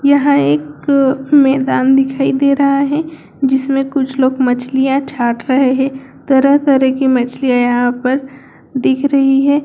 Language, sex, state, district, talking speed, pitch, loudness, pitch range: Hindi, male, Bihar, Darbhanga, 145 wpm, 270 Hz, -13 LUFS, 260-275 Hz